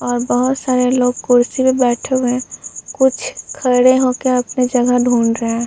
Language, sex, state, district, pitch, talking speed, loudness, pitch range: Hindi, female, Uttar Pradesh, Muzaffarnagar, 250 Hz, 180 wpm, -15 LUFS, 245-255 Hz